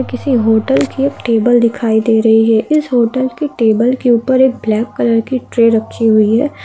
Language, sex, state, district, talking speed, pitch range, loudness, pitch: Hindi, female, Andhra Pradesh, Krishna, 180 wpm, 225-260 Hz, -13 LUFS, 235 Hz